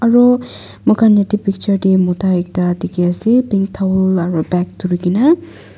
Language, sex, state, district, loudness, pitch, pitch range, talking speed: Nagamese, female, Nagaland, Dimapur, -15 LUFS, 190 Hz, 180-210 Hz, 155 wpm